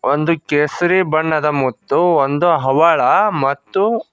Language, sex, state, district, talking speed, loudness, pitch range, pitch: Kannada, male, Karnataka, Koppal, 100 wpm, -15 LUFS, 145-175 Hz, 155 Hz